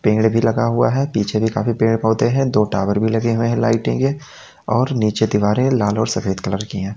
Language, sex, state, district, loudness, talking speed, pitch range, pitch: Hindi, male, Uttar Pradesh, Lalitpur, -18 LUFS, 230 wpm, 105-120 Hz, 110 Hz